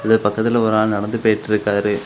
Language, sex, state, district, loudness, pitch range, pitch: Tamil, male, Tamil Nadu, Kanyakumari, -18 LUFS, 105-110 Hz, 110 Hz